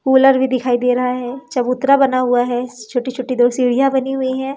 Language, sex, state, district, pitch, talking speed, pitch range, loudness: Hindi, female, Madhya Pradesh, Umaria, 255 Hz, 210 wpm, 245-265 Hz, -16 LUFS